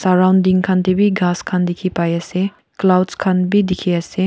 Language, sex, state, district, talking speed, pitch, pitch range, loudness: Nagamese, female, Nagaland, Kohima, 125 wpm, 185 Hz, 180-190 Hz, -16 LUFS